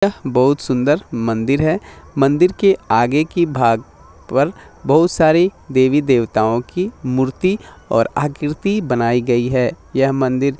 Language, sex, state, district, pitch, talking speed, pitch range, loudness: Hindi, male, Bihar, Gopalganj, 135 Hz, 140 wpm, 125-165 Hz, -17 LUFS